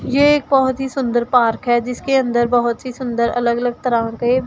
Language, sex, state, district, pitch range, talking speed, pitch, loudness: Hindi, female, Punjab, Pathankot, 240-260 Hz, 215 wpm, 245 Hz, -17 LUFS